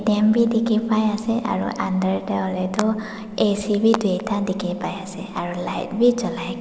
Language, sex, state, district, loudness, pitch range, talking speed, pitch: Nagamese, female, Nagaland, Dimapur, -22 LUFS, 190-220 Hz, 165 wpm, 210 Hz